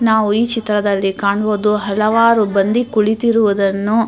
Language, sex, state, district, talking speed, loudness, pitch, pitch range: Kannada, female, Karnataka, Mysore, 120 wpm, -15 LUFS, 210 Hz, 200-225 Hz